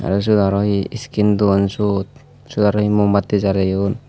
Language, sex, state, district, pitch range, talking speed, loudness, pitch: Chakma, male, Tripura, Unakoti, 100-105 Hz, 175 wpm, -17 LUFS, 105 Hz